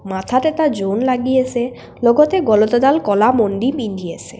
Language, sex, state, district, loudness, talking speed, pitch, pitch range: Assamese, female, Assam, Kamrup Metropolitan, -16 LUFS, 165 wpm, 245 Hz, 205-260 Hz